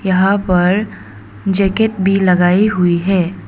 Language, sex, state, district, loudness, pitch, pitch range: Hindi, female, Arunachal Pradesh, Papum Pare, -14 LUFS, 190 Hz, 175-195 Hz